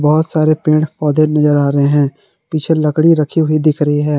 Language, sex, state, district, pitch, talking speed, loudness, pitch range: Hindi, male, Jharkhand, Garhwa, 155 Hz, 215 wpm, -13 LUFS, 150-155 Hz